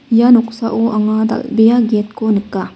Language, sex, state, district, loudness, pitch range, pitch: Garo, female, Meghalaya, West Garo Hills, -14 LUFS, 215-230 Hz, 225 Hz